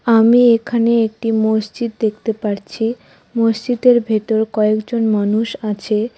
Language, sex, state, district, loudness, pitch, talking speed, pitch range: Bengali, female, West Bengal, Cooch Behar, -16 LUFS, 225 Hz, 105 wpm, 215-235 Hz